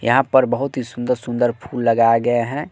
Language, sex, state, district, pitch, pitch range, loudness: Hindi, male, Bihar, West Champaran, 120 Hz, 120-130 Hz, -18 LUFS